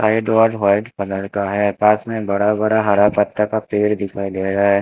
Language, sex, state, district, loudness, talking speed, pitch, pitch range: Hindi, male, Haryana, Jhajjar, -17 LUFS, 225 wpm, 105 Hz, 100-110 Hz